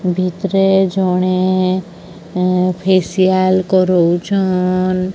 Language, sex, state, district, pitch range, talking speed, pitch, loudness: Odia, male, Odisha, Sambalpur, 180-185 Hz, 60 wpm, 185 Hz, -15 LUFS